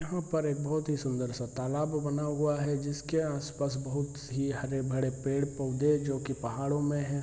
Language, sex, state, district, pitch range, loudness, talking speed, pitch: Hindi, male, Bihar, Araria, 135-150 Hz, -32 LUFS, 175 wpm, 140 Hz